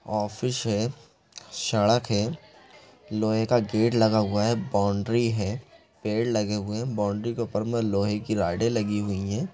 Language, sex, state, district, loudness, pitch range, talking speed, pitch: Hindi, male, Bihar, Begusarai, -26 LUFS, 105-115 Hz, 165 wpm, 110 Hz